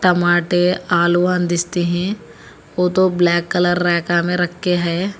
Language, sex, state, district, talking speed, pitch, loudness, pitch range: Hindi, female, Telangana, Hyderabad, 140 wpm, 175 Hz, -17 LUFS, 175-180 Hz